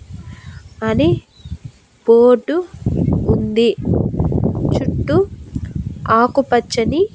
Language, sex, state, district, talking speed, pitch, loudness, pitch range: Telugu, female, Andhra Pradesh, Annamaya, 40 wpm, 240 Hz, -16 LUFS, 230-295 Hz